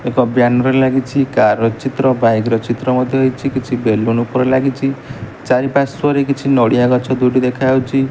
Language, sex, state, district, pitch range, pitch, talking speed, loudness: Odia, male, Odisha, Malkangiri, 120-135 Hz, 130 Hz, 155 wpm, -15 LUFS